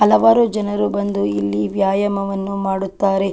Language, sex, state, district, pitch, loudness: Kannada, female, Karnataka, Chamarajanagar, 195 Hz, -18 LUFS